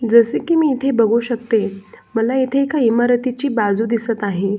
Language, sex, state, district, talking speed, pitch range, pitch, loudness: Marathi, male, Maharashtra, Solapur, 170 wpm, 225-260 Hz, 235 Hz, -17 LUFS